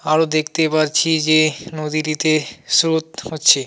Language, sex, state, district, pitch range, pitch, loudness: Bengali, male, West Bengal, Alipurduar, 155-160 Hz, 155 Hz, -17 LUFS